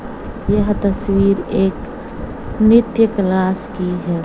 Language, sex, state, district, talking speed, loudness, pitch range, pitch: Hindi, female, Chhattisgarh, Raipur, 100 wpm, -16 LUFS, 185-220 Hz, 195 Hz